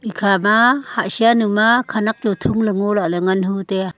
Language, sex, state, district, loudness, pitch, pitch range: Wancho, female, Arunachal Pradesh, Longding, -16 LUFS, 210 Hz, 195-225 Hz